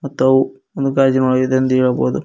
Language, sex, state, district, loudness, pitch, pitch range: Kannada, male, Karnataka, Koppal, -16 LUFS, 130 Hz, 130-135 Hz